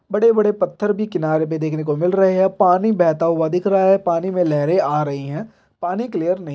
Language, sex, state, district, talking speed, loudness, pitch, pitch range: Hindi, male, Bihar, Purnia, 245 wpm, -18 LUFS, 180 Hz, 160-195 Hz